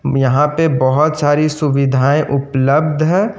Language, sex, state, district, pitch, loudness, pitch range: Hindi, male, Jharkhand, Ranchi, 145 Hz, -14 LUFS, 140-155 Hz